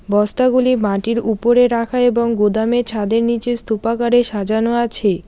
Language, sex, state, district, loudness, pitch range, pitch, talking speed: Bengali, female, West Bengal, Alipurduar, -16 LUFS, 215-240 Hz, 230 Hz, 125 wpm